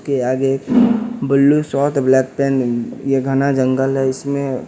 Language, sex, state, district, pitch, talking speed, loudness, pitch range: Hindi, male, Bihar, West Champaran, 135 Hz, 90 wpm, -16 LUFS, 130-140 Hz